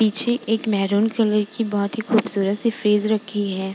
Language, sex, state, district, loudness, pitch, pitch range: Hindi, female, Bihar, Vaishali, -20 LUFS, 210 Hz, 205-225 Hz